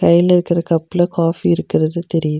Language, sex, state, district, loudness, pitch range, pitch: Tamil, female, Tamil Nadu, Nilgiris, -16 LUFS, 165-175 Hz, 170 Hz